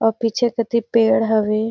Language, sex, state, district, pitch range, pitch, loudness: Surgujia, female, Chhattisgarh, Sarguja, 215-230 Hz, 225 Hz, -18 LUFS